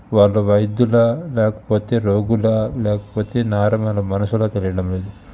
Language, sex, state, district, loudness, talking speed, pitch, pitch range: Telugu, male, Telangana, Hyderabad, -18 LUFS, 100 wpm, 105 Hz, 100-110 Hz